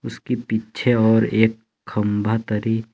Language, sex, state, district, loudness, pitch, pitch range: Hindi, male, Jharkhand, Palamu, -20 LUFS, 110 Hz, 110-115 Hz